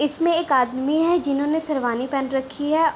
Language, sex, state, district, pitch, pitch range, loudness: Hindi, female, Bihar, Begusarai, 290 Hz, 270-320 Hz, -21 LUFS